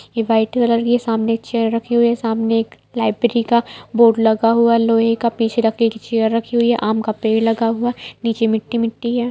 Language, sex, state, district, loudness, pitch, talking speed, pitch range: Hindi, female, Bihar, Saran, -17 LUFS, 230 Hz, 225 wpm, 225-235 Hz